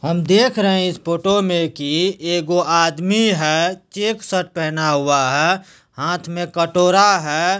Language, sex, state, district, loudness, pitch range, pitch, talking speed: Hindi, male, Bihar, Supaul, -17 LUFS, 165-190 Hz, 175 Hz, 160 wpm